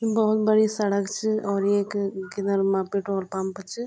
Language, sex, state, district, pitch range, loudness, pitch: Garhwali, female, Uttarakhand, Tehri Garhwal, 195-215 Hz, -24 LUFS, 200 Hz